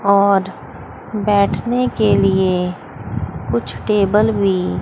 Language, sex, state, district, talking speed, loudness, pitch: Hindi, female, Chandigarh, Chandigarh, 85 wpm, -17 LUFS, 190 Hz